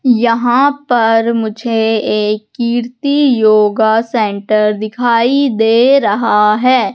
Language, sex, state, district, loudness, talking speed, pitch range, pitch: Hindi, female, Madhya Pradesh, Katni, -12 LUFS, 95 wpm, 215-250 Hz, 230 Hz